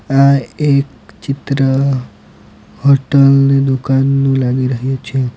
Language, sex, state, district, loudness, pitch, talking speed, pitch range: Gujarati, male, Gujarat, Valsad, -13 LUFS, 135 Hz, 100 wpm, 130-140 Hz